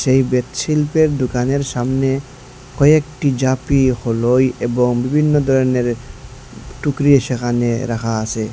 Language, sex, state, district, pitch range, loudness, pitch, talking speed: Bengali, male, Assam, Hailakandi, 125-140 Hz, -16 LUFS, 130 Hz, 105 wpm